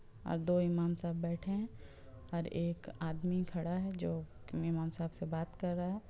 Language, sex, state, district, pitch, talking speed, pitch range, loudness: Hindi, female, Bihar, Muzaffarpur, 170 Hz, 175 wpm, 165-180 Hz, -38 LUFS